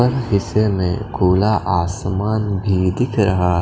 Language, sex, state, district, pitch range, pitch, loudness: Hindi, male, Punjab, Fazilka, 90-105 Hz, 100 Hz, -18 LUFS